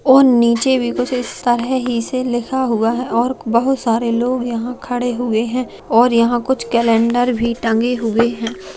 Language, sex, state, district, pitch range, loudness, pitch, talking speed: Hindi, female, Bihar, Begusarai, 230-250 Hz, -16 LUFS, 240 Hz, 185 wpm